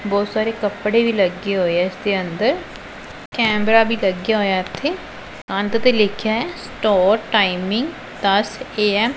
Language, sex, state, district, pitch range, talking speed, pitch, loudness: Punjabi, female, Punjab, Pathankot, 195-225 Hz, 165 wpm, 210 Hz, -19 LUFS